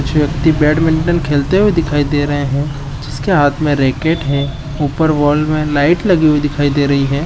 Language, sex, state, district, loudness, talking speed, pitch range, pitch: Chhattisgarhi, male, Chhattisgarh, Jashpur, -14 LUFS, 200 wpm, 140-155 Hz, 145 Hz